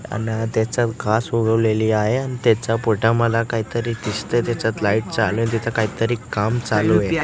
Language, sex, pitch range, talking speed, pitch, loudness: Marathi, male, 110-115 Hz, 160 wpm, 115 Hz, -20 LUFS